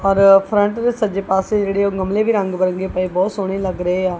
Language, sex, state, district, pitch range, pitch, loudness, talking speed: Punjabi, female, Punjab, Kapurthala, 185-205 Hz, 195 Hz, -17 LUFS, 245 wpm